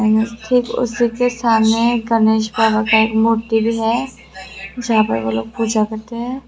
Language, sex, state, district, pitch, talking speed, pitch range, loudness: Hindi, female, Tripura, West Tripura, 225 Hz, 185 wpm, 220-235 Hz, -17 LUFS